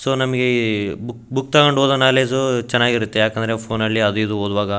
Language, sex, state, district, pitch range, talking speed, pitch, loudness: Kannada, male, Karnataka, Raichur, 110-130 Hz, 190 wpm, 120 Hz, -18 LUFS